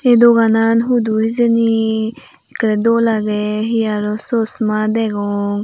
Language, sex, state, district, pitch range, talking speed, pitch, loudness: Chakma, female, Tripura, Unakoti, 215-230 Hz, 115 wpm, 225 Hz, -15 LUFS